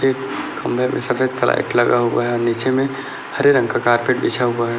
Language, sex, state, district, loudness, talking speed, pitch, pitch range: Hindi, male, Chhattisgarh, Bastar, -18 LUFS, 250 wpm, 125 Hz, 120-130 Hz